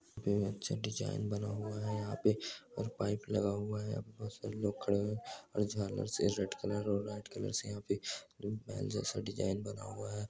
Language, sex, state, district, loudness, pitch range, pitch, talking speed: Hindi, male, Bihar, Saran, -38 LUFS, 105-110 Hz, 105 Hz, 210 wpm